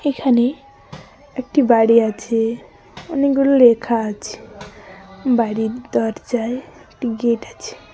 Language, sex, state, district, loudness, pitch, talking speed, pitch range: Bengali, female, West Bengal, Dakshin Dinajpur, -18 LUFS, 235 Hz, 90 wpm, 225-260 Hz